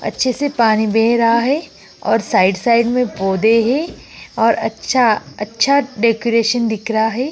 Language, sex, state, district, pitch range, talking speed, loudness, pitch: Hindi, female, Uttar Pradesh, Jyotiba Phule Nagar, 220-250 Hz, 150 wpm, -16 LUFS, 230 Hz